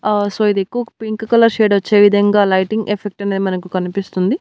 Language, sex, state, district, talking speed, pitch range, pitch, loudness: Telugu, female, Andhra Pradesh, Annamaya, 175 wpm, 195-215 Hz, 205 Hz, -15 LUFS